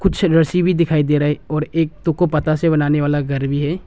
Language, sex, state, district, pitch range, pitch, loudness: Hindi, male, Arunachal Pradesh, Longding, 150-165 Hz, 155 Hz, -17 LUFS